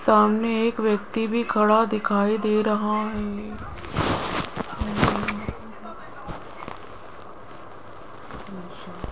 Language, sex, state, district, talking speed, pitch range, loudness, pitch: Hindi, female, Rajasthan, Jaipur, 60 wpm, 210-225 Hz, -23 LUFS, 215 Hz